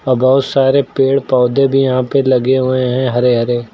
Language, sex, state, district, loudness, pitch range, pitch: Hindi, male, Uttar Pradesh, Lucknow, -13 LUFS, 125-135 Hz, 130 Hz